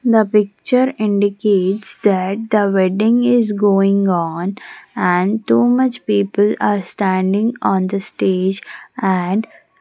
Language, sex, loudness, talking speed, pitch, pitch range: English, female, -16 LUFS, 120 wpm, 205 Hz, 190-220 Hz